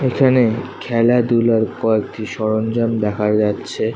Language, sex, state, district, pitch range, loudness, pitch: Bengali, male, West Bengal, Kolkata, 110-120 Hz, -17 LUFS, 115 Hz